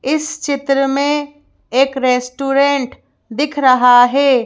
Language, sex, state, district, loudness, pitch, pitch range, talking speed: Hindi, female, Madhya Pradesh, Bhopal, -14 LUFS, 275 Hz, 255-285 Hz, 105 wpm